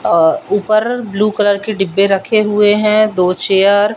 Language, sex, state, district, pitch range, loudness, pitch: Hindi, female, Madhya Pradesh, Katni, 195-215 Hz, -13 LUFS, 205 Hz